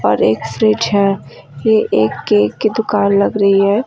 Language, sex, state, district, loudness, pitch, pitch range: Hindi, female, Uttar Pradesh, Lucknow, -14 LUFS, 200 Hz, 130-215 Hz